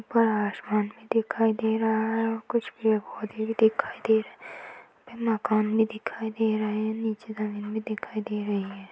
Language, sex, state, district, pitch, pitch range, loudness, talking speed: Hindi, female, Chhattisgarh, Balrampur, 220 Hz, 215-225 Hz, -27 LUFS, 195 wpm